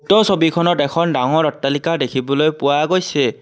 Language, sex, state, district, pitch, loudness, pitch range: Assamese, male, Assam, Kamrup Metropolitan, 155 Hz, -16 LUFS, 140-170 Hz